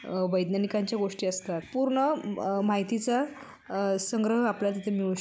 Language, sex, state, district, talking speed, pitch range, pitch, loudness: Marathi, female, Maharashtra, Sindhudurg, 150 wpm, 195-230 Hz, 205 Hz, -29 LUFS